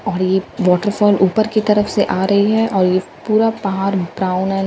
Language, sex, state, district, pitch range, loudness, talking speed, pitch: Hindi, female, Bihar, Katihar, 190-210 Hz, -16 LUFS, 220 wpm, 195 Hz